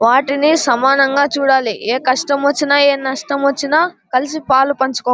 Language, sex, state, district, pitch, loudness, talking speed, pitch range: Telugu, male, Andhra Pradesh, Anantapur, 275 Hz, -14 LUFS, 150 wpm, 260-285 Hz